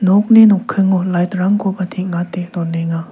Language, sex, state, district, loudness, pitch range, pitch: Garo, male, Meghalaya, South Garo Hills, -15 LUFS, 175-195 Hz, 185 Hz